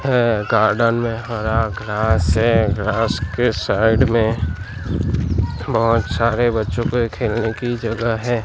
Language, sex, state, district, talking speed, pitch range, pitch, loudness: Hindi, male, Gujarat, Gandhinagar, 130 wpm, 105-115 Hz, 110 Hz, -19 LUFS